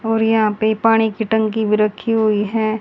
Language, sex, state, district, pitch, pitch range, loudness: Hindi, female, Haryana, Jhajjar, 220 Hz, 215-225 Hz, -17 LUFS